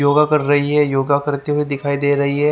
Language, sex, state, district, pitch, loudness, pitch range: Hindi, male, Haryana, Jhajjar, 145 Hz, -17 LUFS, 140-150 Hz